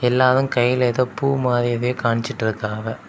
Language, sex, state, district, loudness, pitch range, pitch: Tamil, male, Tamil Nadu, Kanyakumari, -20 LUFS, 115-130 Hz, 125 Hz